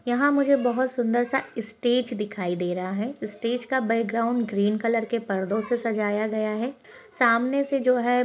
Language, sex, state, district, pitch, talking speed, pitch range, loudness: Hindi, female, Bihar, Begusarai, 235 Hz, 180 wpm, 215-255 Hz, -25 LUFS